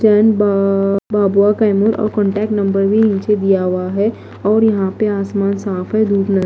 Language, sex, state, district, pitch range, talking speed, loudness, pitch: Hindi, female, Bihar, Kaimur, 195-215 Hz, 160 wpm, -15 LUFS, 200 Hz